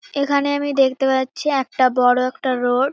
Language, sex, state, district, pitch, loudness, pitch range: Bengali, female, West Bengal, North 24 Parganas, 265 Hz, -18 LUFS, 255-280 Hz